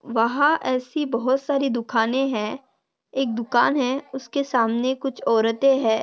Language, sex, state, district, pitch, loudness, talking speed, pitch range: Hindi, female, Maharashtra, Dhule, 260 Hz, -22 LUFS, 140 wpm, 235-275 Hz